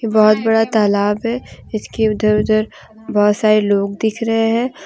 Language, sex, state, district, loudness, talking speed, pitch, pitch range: Hindi, female, Jharkhand, Deoghar, -16 LUFS, 160 wpm, 215 Hz, 210-225 Hz